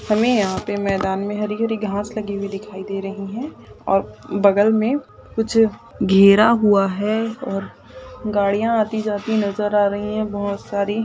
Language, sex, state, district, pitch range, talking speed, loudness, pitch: Hindi, female, Maharashtra, Nagpur, 200-220 Hz, 165 wpm, -20 LUFS, 205 Hz